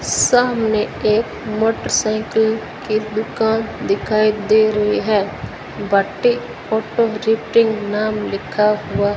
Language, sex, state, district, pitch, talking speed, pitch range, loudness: Hindi, female, Rajasthan, Bikaner, 215 Hz, 90 wpm, 210-220 Hz, -18 LUFS